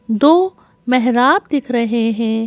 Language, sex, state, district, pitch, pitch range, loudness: Hindi, female, Madhya Pradesh, Bhopal, 245 Hz, 230-290 Hz, -15 LUFS